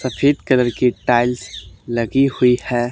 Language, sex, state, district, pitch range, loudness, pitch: Hindi, male, Haryana, Charkhi Dadri, 120-130 Hz, -17 LUFS, 125 Hz